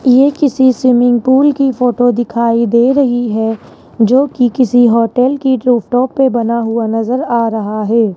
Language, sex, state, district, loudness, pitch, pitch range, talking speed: Hindi, male, Rajasthan, Jaipur, -12 LUFS, 245 Hz, 230-260 Hz, 175 wpm